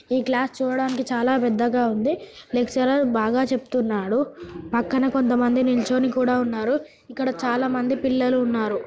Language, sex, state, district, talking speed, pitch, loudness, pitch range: Telugu, female, Telangana, Nalgonda, 135 wpm, 255 Hz, -22 LUFS, 240-260 Hz